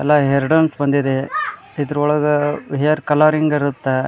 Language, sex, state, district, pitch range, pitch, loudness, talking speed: Kannada, male, Karnataka, Dharwad, 140-150 Hz, 145 Hz, -17 LUFS, 130 wpm